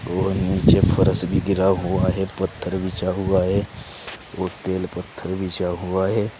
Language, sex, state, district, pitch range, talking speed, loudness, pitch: Hindi, male, Uttar Pradesh, Saharanpur, 90-95 Hz, 160 wpm, -22 LUFS, 95 Hz